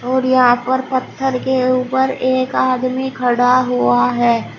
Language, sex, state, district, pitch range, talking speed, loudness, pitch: Hindi, female, Uttar Pradesh, Shamli, 245-260 Hz, 145 wpm, -16 LUFS, 255 Hz